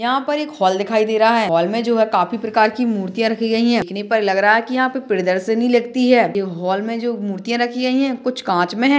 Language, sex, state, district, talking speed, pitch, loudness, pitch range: Hindi, female, Maharashtra, Dhule, 265 wpm, 225 Hz, -18 LUFS, 200-240 Hz